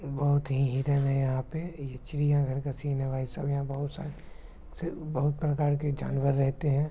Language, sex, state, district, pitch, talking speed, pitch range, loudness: Hindi, male, Bihar, Supaul, 140 Hz, 180 wpm, 135-145 Hz, -30 LUFS